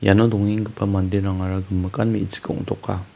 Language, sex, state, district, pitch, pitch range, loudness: Garo, male, Meghalaya, West Garo Hills, 100 Hz, 95-105 Hz, -22 LUFS